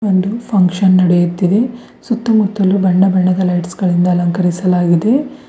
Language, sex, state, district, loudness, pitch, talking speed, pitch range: Kannada, female, Karnataka, Bidar, -13 LUFS, 185 Hz, 110 wpm, 180-210 Hz